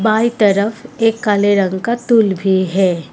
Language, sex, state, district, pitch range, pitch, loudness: Hindi, female, Assam, Kamrup Metropolitan, 190-230 Hz, 205 Hz, -15 LUFS